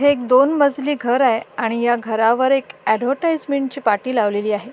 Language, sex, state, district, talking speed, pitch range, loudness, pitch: Marathi, female, Maharashtra, Sindhudurg, 205 wpm, 225-275 Hz, -18 LUFS, 255 Hz